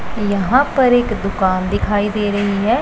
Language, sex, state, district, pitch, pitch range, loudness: Hindi, female, Punjab, Pathankot, 205 Hz, 200-235 Hz, -16 LUFS